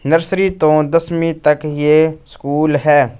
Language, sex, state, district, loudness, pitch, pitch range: Hindi, male, Punjab, Fazilka, -14 LUFS, 155 Hz, 150-165 Hz